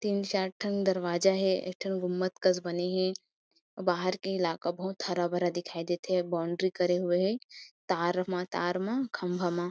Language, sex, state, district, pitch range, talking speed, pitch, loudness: Chhattisgarhi, female, Chhattisgarh, Kabirdham, 175-190 Hz, 185 wpm, 185 Hz, -31 LUFS